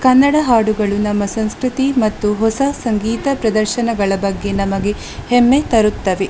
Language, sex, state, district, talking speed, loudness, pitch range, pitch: Kannada, female, Karnataka, Dakshina Kannada, 115 wpm, -16 LUFS, 205-245 Hz, 220 Hz